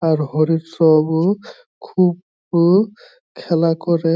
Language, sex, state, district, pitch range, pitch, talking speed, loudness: Bengali, male, West Bengal, Jhargram, 160-205 Hz, 170 Hz, 115 wpm, -17 LUFS